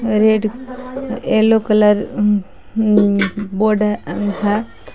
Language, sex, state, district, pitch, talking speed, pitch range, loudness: Hindi, female, Jharkhand, Palamu, 215 Hz, 75 wpm, 205-225 Hz, -16 LUFS